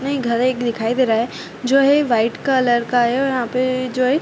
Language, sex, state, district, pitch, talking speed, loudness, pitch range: Hindi, female, Uttar Pradesh, Ghazipur, 255 Hz, 270 wpm, -18 LUFS, 235-265 Hz